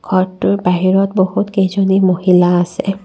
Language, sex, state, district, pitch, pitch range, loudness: Assamese, female, Assam, Kamrup Metropolitan, 190 Hz, 180-195 Hz, -14 LUFS